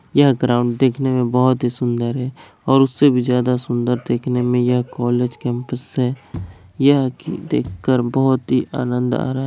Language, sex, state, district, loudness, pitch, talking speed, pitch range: Hindi, male, Bihar, Kishanganj, -18 LUFS, 125 Hz, 175 wpm, 120-130 Hz